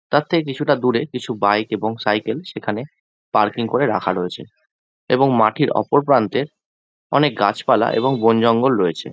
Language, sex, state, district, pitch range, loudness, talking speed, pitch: Bengali, male, West Bengal, Jhargram, 105-135 Hz, -18 LUFS, 145 wpm, 115 Hz